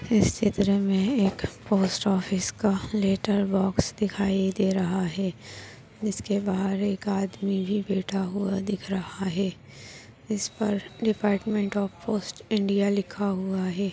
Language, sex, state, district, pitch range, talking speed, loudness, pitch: Hindi, female, Maharashtra, Aurangabad, 190-205 Hz, 140 wpm, -26 LUFS, 195 Hz